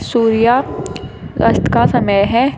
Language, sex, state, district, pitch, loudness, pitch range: Hindi, female, Uttar Pradesh, Shamli, 235 Hz, -14 LUFS, 225-245 Hz